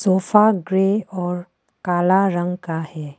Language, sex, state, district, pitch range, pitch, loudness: Hindi, female, Arunachal Pradesh, Papum Pare, 175-195 Hz, 180 Hz, -19 LUFS